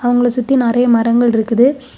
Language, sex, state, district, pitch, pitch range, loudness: Tamil, female, Tamil Nadu, Kanyakumari, 245 Hz, 235-250 Hz, -13 LUFS